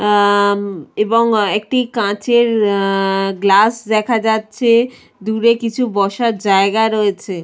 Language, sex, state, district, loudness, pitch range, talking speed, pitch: Bengali, female, West Bengal, Purulia, -15 LUFS, 200-230 Hz, 115 wpm, 215 Hz